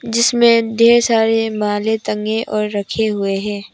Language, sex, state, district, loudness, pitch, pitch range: Hindi, female, Arunachal Pradesh, Papum Pare, -16 LUFS, 220 Hz, 210-230 Hz